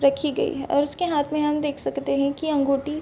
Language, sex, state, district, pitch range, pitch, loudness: Hindi, female, Uttar Pradesh, Varanasi, 280-300 Hz, 290 Hz, -24 LUFS